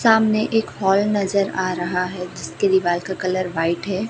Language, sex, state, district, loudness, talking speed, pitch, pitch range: Hindi, female, Chhattisgarh, Raipur, -20 LUFS, 190 wpm, 190 Hz, 180-205 Hz